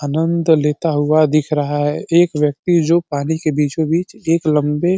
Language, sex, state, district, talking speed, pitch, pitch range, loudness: Hindi, male, Uttar Pradesh, Deoria, 190 wpm, 155 Hz, 150-165 Hz, -16 LUFS